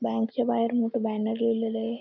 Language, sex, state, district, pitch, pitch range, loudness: Marathi, female, Maharashtra, Aurangabad, 230 Hz, 225-235 Hz, -27 LUFS